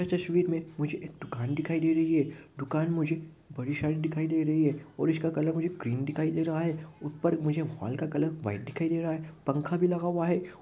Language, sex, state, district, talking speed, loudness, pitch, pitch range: Hindi, male, Rajasthan, Nagaur, 235 wpm, -30 LUFS, 160 Hz, 150-165 Hz